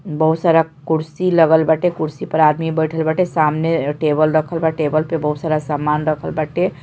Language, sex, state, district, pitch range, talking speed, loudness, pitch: Bhojpuri, male, Bihar, Saran, 155-165 Hz, 195 wpm, -17 LUFS, 160 Hz